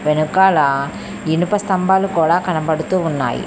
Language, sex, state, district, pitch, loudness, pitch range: Telugu, female, Telangana, Hyderabad, 165 Hz, -17 LUFS, 155-190 Hz